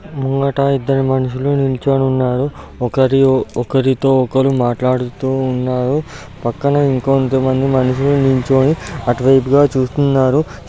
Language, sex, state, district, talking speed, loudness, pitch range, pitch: Telugu, male, Andhra Pradesh, Guntur, 110 wpm, -15 LUFS, 130-140 Hz, 135 Hz